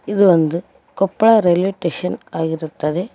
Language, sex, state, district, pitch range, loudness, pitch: Kannada, female, Karnataka, Koppal, 160-200 Hz, -17 LUFS, 180 Hz